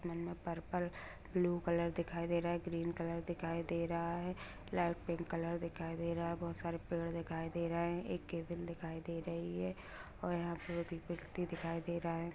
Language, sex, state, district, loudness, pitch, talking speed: Hindi, female, Bihar, Madhepura, -41 LUFS, 170 Hz, 215 wpm